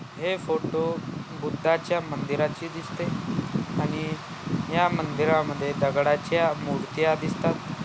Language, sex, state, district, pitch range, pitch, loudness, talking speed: Marathi, male, Maharashtra, Aurangabad, 150-170 Hz, 160 Hz, -27 LUFS, 90 wpm